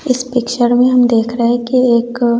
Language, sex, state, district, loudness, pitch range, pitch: Hindi, female, Bihar, West Champaran, -13 LUFS, 235-250 Hz, 245 Hz